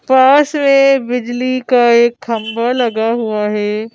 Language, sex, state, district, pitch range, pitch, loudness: Hindi, female, Madhya Pradesh, Bhopal, 225-260 Hz, 240 Hz, -13 LUFS